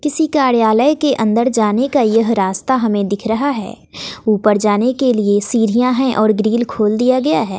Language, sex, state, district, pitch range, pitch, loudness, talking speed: Hindi, female, Bihar, West Champaran, 215-260 Hz, 225 Hz, -15 LUFS, 190 wpm